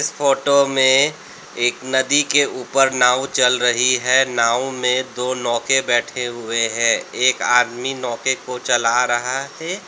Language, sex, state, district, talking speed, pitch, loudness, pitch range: Hindi, male, Uttar Pradesh, Lalitpur, 145 wpm, 130 Hz, -18 LUFS, 120-135 Hz